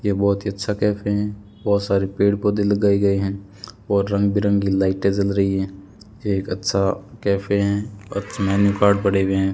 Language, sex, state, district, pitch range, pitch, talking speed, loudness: Hindi, male, Rajasthan, Bikaner, 100-105 Hz, 100 Hz, 195 wpm, -20 LUFS